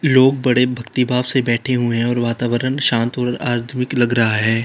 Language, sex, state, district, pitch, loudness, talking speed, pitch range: Hindi, male, Uttar Pradesh, Lalitpur, 125 Hz, -17 LUFS, 205 wpm, 120-125 Hz